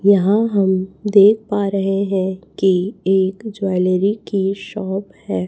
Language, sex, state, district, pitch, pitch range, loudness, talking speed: Hindi, female, Chhattisgarh, Raipur, 195 Hz, 190-205 Hz, -18 LUFS, 130 wpm